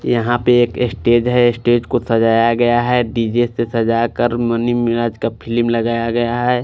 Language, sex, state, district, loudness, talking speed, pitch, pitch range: Hindi, male, Punjab, Fazilka, -16 LUFS, 165 wpm, 120 Hz, 115-120 Hz